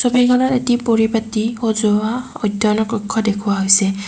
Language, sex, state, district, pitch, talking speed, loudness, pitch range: Assamese, female, Assam, Sonitpur, 220 Hz, 115 wpm, -17 LUFS, 210-240 Hz